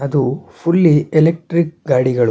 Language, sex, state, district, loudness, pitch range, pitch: Kannada, male, Karnataka, Shimoga, -15 LUFS, 135-170 Hz, 155 Hz